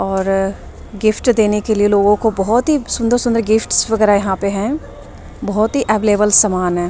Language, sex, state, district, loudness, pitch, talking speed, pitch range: Hindi, female, Delhi, New Delhi, -15 LUFS, 210 Hz, 180 wpm, 200-225 Hz